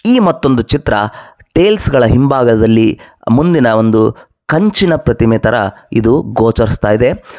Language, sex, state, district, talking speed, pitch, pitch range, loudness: Kannada, male, Karnataka, Bellary, 105 wpm, 115 Hz, 110-145 Hz, -11 LUFS